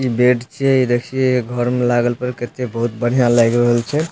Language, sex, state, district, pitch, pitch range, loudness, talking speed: Maithili, male, Bihar, Supaul, 125 Hz, 120-125 Hz, -17 LUFS, 220 wpm